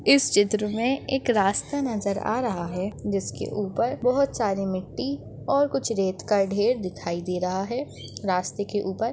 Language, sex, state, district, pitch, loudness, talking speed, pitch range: Hindi, female, Maharashtra, Chandrapur, 205 Hz, -25 LUFS, 175 wpm, 190-245 Hz